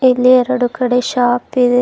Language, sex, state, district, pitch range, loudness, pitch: Kannada, female, Karnataka, Bidar, 245-255 Hz, -14 LUFS, 250 Hz